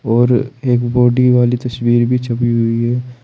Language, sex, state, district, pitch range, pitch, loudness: Hindi, male, Uttar Pradesh, Saharanpur, 120-125 Hz, 120 Hz, -14 LUFS